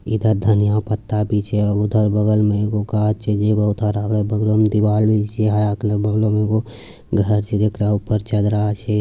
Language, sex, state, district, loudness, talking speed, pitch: Angika, male, Bihar, Bhagalpur, -18 LUFS, 205 wpm, 105 Hz